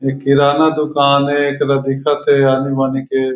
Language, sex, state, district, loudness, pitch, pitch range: Chhattisgarhi, male, Chhattisgarh, Raigarh, -14 LUFS, 140 Hz, 135-145 Hz